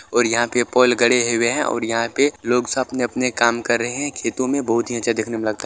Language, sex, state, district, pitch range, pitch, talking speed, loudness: Maithili, male, Bihar, Supaul, 115-125 Hz, 120 Hz, 275 wpm, -19 LUFS